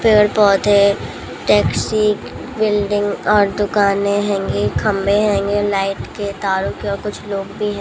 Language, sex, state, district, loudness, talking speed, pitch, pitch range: Hindi, female, Bihar, Jamui, -17 LUFS, 125 wpm, 205 Hz, 200-210 Hz